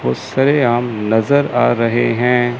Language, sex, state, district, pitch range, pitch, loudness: Hindi, male, Chandigarh, Chandigarh, 110-125 Hz, 120 Hz, -15 LUFS